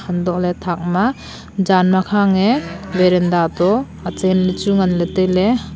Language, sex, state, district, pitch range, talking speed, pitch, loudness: Wancho, female, Arunachal Pradesh, Longding, 180-195 Hz, 115 wpm, 185 Hz, -16 LUFS